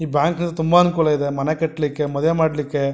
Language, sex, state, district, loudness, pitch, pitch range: Kannada, male, Karnataka, Mysore, -19 LUFS, 155 Hz, 145-165 Hz